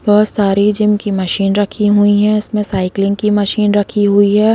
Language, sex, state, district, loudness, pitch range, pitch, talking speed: Hindi, female, Uttarakhand, Uttarkashi, -13 LUFS, 200-210 Hz, 205 Hz, 195 wpm